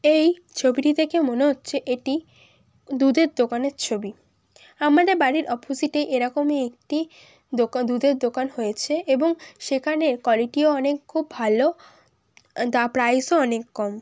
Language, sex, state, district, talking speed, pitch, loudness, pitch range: Bengali, female, West Bengal, Kolkata, 130 wpm, 275 Hz, -22 LUFS, 245-305 Hz